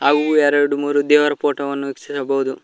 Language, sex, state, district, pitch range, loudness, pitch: Kannada, male, Karnataka, Koppal, 140-145 Hz, -18 LUFS, 145 Hz